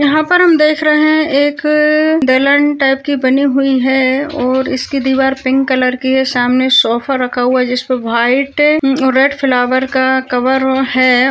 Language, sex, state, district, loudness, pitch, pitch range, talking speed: Hindi, female, Uttarakhand, Tehri Garhwal, -12 LUFS, 265 Hz, 255-285 Hz, 175 wpm